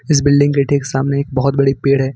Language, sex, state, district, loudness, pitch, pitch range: Hindi, male, Jharkhand, Ranchi, -15 LUFS, 140 Hz, 135-140 Hz